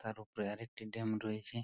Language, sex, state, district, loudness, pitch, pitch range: Bengali, male, West Bengal, Purulia, -41 LUFS, 110 Hz, 110-115 Hz